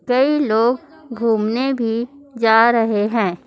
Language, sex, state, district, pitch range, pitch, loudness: Hindi, female, Chhattisgarh, Raipur, 225-265 Hz, 235 Hz, -17 LUFS